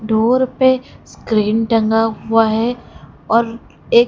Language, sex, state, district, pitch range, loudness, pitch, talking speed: Hindi, female, Odisha, Khordha, 220-245 Hz, -16 LUFS, 225 Hz, 115 wpm